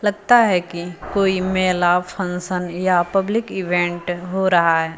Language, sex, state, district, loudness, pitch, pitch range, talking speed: Hindi, female, Uttar Pradesh, Lucknow, -19 LUFS, 180 Hz, 175-190 Hz, 145 wpm